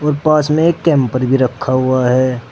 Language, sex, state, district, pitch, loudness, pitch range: Hindi, male, Uttar Pradesh, Saharanpur, 130 Hz, -14 LUFS, 130-150 Hz